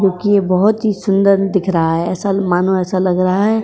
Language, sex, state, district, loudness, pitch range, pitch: Hindi, female, Uttar Pradesh, Etah, -15 LUFS, 185-200 Hz, 190 Hz